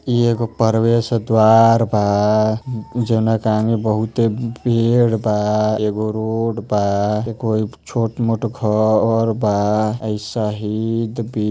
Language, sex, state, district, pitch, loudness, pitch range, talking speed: Bhojpuri, male, Uttar Pradesh, Ghazipur, 110 Hz, -18 LUFS, 110-115 Hz, 130 wpm